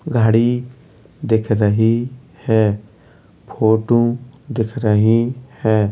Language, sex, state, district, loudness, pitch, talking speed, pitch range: Hindi, male, Uttar Pradesh, Jalaun, -17 LUFS, 115 Hz, 80 wpm, 110-125 Hz